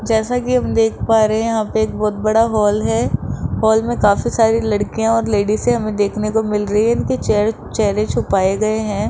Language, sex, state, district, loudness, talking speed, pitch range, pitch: Hindi, female, Rajasthan, Jaipur, -17 LUFS, 215 wpm, 210-225 Hz, 215 Hz